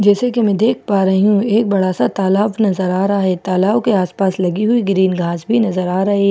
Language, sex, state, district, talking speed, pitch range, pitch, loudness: Hindi, female, Bihar, Katihar, 255 wpm, 185-215 Hz, 200 Hz, -15 LUFS